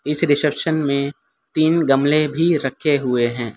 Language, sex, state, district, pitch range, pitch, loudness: Hindi, male, Gujarat, Valsad, 135-155 Hz, 145 Hz, -18 LUFS